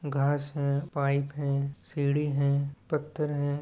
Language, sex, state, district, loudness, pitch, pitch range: Hindi, male, Rajasthan, Nagaur, -29 LUFS, 140 Hz, 140-145 Hz